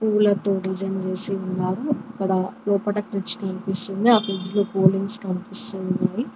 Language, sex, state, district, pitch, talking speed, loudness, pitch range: Telugu, female, Telangana, Mahabubabad, 195 Hz, 75 wpm, -23 LUFS, 190-210 Hz